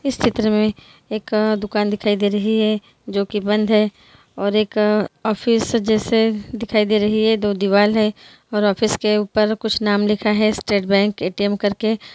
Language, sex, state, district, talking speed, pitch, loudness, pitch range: Hindi, female, Bihar, Muzaffarpur, 190 wpm, 215 Hz, -19 LUFS, 205-220 Hz